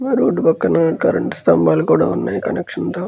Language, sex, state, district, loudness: Telugu, male, Andhra Pradesh, Guntur, -16 LUFS